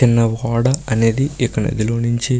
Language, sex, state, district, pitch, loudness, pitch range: Telugu, male, Karnataka, Bellary, 120 Hz, -18 LUFS, 115-130 Hz